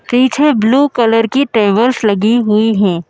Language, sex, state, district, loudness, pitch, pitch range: Hindi, female, Madhya Pradesh, Bhopal, -12 LUFS, 225 Hz, 215-255 Hz